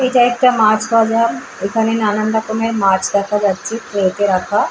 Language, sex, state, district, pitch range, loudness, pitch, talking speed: Bengali, female, West Bengal, Jalpaiguri, 200-230 Hz, -15 LUFS, 220 Hz, 155 wpm